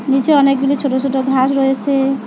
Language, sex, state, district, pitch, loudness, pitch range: Bengali, female, West Bengal, Alipurduar, 270 Hz, -15 LUFS, 270-275 Hz